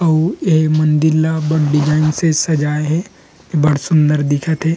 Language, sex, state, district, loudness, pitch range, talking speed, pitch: Chhattisgarhi, male, Chhattisgarh, Rajnandgaon, -15 LUFS, 150-160 Hz, 175 wpm, 155 Hz